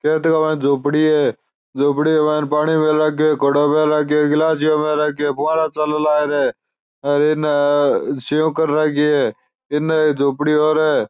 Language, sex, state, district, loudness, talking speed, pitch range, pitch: Marwari, male, Rajasthan, Churu, -17 LUFS, 145 wpm, 150-155 Hz, 150 Hz